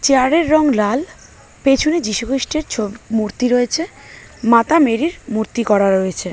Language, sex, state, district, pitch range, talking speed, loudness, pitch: Bengali, female, West Bengal, Malda, 220-305 Hz, 115 wpm, -16 LUFS, 245 Hz